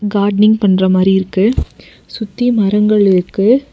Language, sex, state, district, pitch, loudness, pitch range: Tamil, female, Tamil Nadu, Nilgiris, 205 Hz, -12 LUFS, 190-220 Hz